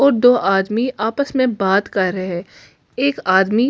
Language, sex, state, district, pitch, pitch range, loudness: Hindi, female, Delhi, New Delhi, 220 Hz, 195-255 Hz, -17 LUFS